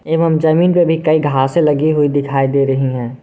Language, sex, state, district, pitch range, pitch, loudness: Hindi, male, Jharkhand, Garhwa, 135-160 Hz, 150 Hz, -14 LUFS